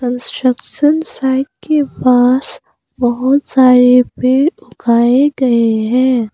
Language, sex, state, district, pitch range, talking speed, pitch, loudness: Hindi, female, Arunachal Pradesh, Papum Pare, 245-275 Hz, 95 wpm, 255 Hz, -13 LUFS